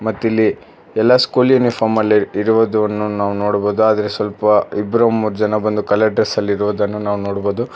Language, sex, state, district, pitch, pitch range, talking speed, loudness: Kannada, male, Karnataka, Bangalore, 105 Hz, 105-110 Hz, 145 wpm, -16 LUFS